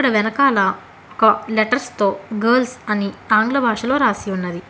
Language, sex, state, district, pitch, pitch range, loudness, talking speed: Telugu, female, Telangana, Hyderabad, 215 Hz, 200-250 Hz, -18 LUFS, 130 wpm